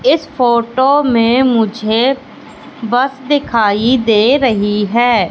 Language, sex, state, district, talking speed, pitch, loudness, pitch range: Hindi, female, Madhya Pradesh, Katni, 100 wpm, 240 Hz, -13 LUFS, 225-265 Hz